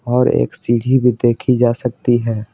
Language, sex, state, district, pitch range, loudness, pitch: Hindi, male, Bihar, Patna, 115-125 Hz, -16 LUFS, 120 Hz